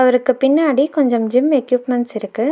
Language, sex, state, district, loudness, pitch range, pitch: Tamil, female, Tamil Nadu, Nilgiris, -16 LUFS, 245-275 Hz, 255 Hz